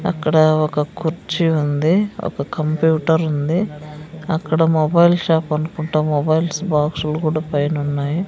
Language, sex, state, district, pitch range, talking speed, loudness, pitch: Telugu, female, Andhra Pradesh, Sri Satya Sai, 150-165 Hz, 125 wpm, -18 LUFS, 155 Hz